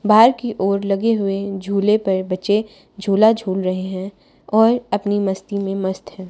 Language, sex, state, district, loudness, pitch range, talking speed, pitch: Hindi, female, Haryana, Charkhi Dadri, -19 LUFS, 190-215 Hz, 170 wpm, 200 Hz